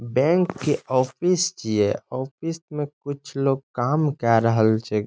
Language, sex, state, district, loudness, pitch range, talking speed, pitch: Maithili, male, Bihar, Saharsa, -23 LUFS, 115-150 Hz, 140 wpm, 135 Hz